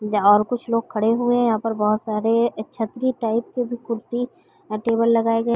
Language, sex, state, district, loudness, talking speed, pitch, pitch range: Hindi, female, Bihar, East Champaran, -21 LUFS, 235 wpm, 230 Hz, 220-240 Hz